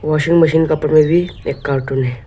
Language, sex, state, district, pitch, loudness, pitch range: Hindi, male, Arunachal Pradesh, Lower Dibang Valley, 155 Hz, -15 LUFS, 135-160 Hz